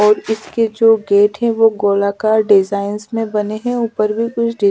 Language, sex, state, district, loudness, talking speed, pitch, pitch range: Hindi, female, Chhattisgarh, Raipur, -15 LUFS, 180 wpm, 215 Hz, 205-225 Hz